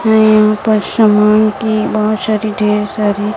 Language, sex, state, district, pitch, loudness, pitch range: Hindi, female, Chhattisgarh, Raipur, 215 Hz, -12 LUFS, 210-215 Hz